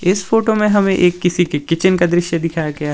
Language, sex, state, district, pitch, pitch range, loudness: Hindi, male, Himachal Pradesh, Shimla, 175 Hz, 165-195 Hz, -15 LUFS